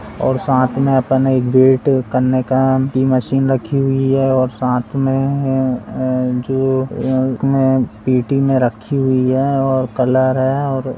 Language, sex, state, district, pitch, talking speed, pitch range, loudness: Hindi, male, Rajasthan, Churu, 130 Hz, 130 wpm, 130-135 Hz, -16 LUFS